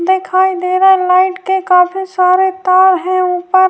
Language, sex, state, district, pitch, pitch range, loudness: Urdu, female, Bihar, Saharsa, 370 Hz, 365-380 Hz, -12 LUFS